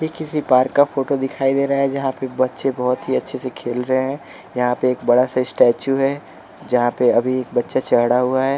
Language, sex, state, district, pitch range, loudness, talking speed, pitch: Hindi, male, Bihar, West Champaran, 125-135 Hz, -18 LUFS, 235 wpm, 130 Hz